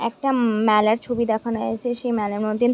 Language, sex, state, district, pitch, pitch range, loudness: Bengali, female, West Bengal, Jhargram, 230 Hz, 215-240 Hz, -22 LUFS